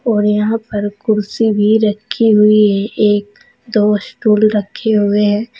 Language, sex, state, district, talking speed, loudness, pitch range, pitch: Hindi, female, Uttar Pradesh, Saharanpur, 150 wpm, -14 LUFS, 210-220 Hz, 210 Hz